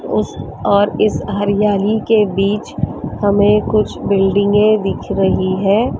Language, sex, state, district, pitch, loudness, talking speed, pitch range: Hindi, female, Maharashtra, Mumbai Suburban, 205 Hz, -15 LUFS, 120 wpm, 200-210 Hz